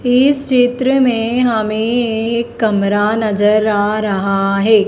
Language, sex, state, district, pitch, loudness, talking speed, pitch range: Hindi, female, Madhya Pradesh, Dhar, 220 Hz, -14 LUFS, 125 wpm, 210-245 Hz